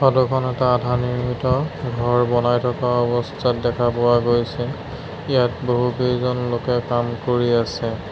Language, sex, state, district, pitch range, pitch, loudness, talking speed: Assamese, male, Assam, Sonitpur, 120-125 Hz, 125 Hz, -20 LUFS, 135 wpm